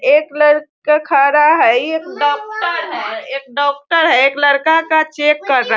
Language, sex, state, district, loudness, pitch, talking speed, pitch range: Hindi, female, Bihar, Sitamarhi, -14 LUFS, 295 Hz, 185 wpm, 280-320 Hz